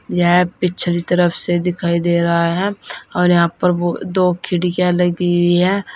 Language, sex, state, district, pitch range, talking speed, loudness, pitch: Hindi, female, Uttar Pradesh, Saharanpur, 175-180 Hz, 170 wpm, -16 LUFS, 175 Hz